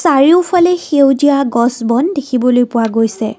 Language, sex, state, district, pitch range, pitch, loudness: Assamese, female, Assam, Kamrup Metropolitan, 235-315 Hz, 270 Hz, -12 LUFS